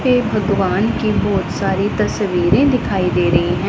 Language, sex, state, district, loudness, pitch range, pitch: Hindi, female, Punjab, Pathankot, -16 LUFS, 180-240 Hz, 195 Hz